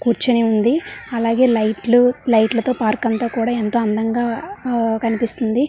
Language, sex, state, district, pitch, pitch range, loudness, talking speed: Telugu, female, Andhra Pradesh, Visakhapatnam, 230 Hz, 225-245 Hz, -17 LUFS, 150 wpm